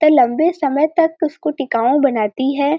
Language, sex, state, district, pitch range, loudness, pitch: Hindi, female, Uttar Pradesh, Varanasi, 275-315 Hz, -16 LUFS, 295 Hz